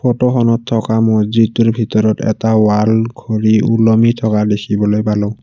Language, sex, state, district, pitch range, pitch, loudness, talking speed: Assamese, male, Assam, Kamrup Metropolitan, 110-115 Hz, 110 Hz, -13 LUFS, 120 wpm